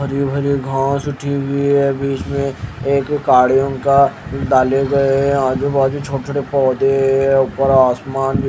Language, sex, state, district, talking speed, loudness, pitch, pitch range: Hindi, male, Odisha, Malkangiri, 165 wpm, -16 LUFS, 135 Hz, 135-140 Hz